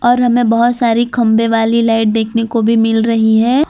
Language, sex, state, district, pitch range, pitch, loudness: Hindi, female, Gujarat, Valsad, 225-240 Hz, 230 Hz, -12 LUFS